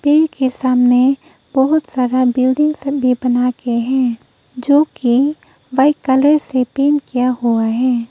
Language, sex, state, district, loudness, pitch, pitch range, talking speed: Hindi, female, Arunachal Pradesh, Papum Pare, -15 LUFS, 260 Hz, 250-285 Hz, 150 wpm